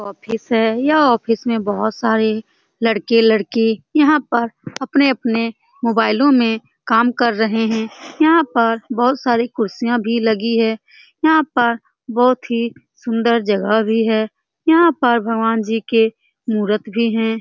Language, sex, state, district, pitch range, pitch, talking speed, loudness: Hindi, female, Bihar, Saran, 225-245 Hz, 230 Hz, 140 wpm, -17 LUFS